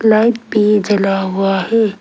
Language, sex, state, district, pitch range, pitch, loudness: Hindi, female, Arunachal Pradesh, Lower Dibang Valley, 195-220 Hz, 210 Hz, -14 LUFS